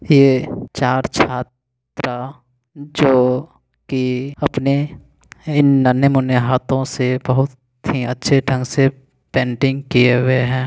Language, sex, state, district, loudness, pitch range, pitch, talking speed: Hindi, male, Bihar, Begusarai, -17 LUFS, 125-140 Hz, 130 Hz, 110 wpm